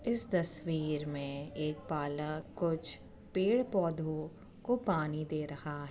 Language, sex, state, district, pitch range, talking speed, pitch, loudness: Hindi, female, Uttar Pradesh, Etah, 150-185 Hz, 120 wpm, 155 Hz, -35 LUFS